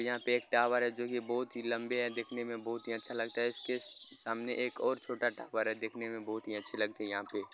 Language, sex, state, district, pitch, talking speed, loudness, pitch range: Hindi, male, Bihar, Lakhisarai, 120 Hz, 270 wpm, -36 LUFS, 115-120 Hz